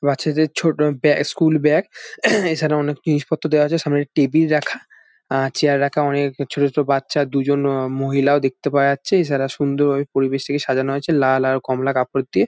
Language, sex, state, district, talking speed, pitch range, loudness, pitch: Bengali, male, West Bengal, Jalpaiguri, 190 wpm, 135-150 Hz, -19 LUFS, 145 Hz